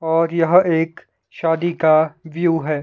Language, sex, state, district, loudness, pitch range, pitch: Hindi, male, Himachal Pradesh, Shimla, -18 LUFS, 160-170 Hz, 165 Hz